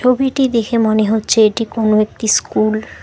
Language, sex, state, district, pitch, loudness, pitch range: Bengali, female, West Bengal, Alipurduar, 220 Hz, -15 LUFS, 210-230 Hz